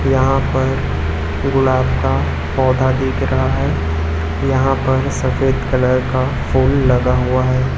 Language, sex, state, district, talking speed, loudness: Hindi, male, Chhattisgarh, Raipur, 130 wpm, -16 LUFS